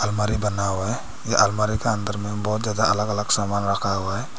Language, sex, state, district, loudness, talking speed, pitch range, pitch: Hindi, male, Arunachal Pradesh, Papum Pare, -23 LUFS, 220 wpm, 100-105 Hz, 105 Hz